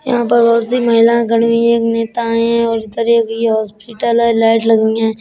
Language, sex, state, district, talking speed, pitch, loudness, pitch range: Bundeli, female, Uttar Pradesh, Budaun, 240 wpm, 230 Hz, -13 LUFS, 225-235 Hz